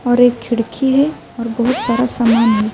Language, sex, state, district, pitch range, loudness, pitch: Urdu, female, Uttar Pradesh, Budaun, 230-255 Hz, -15 LUFS, 240 Hz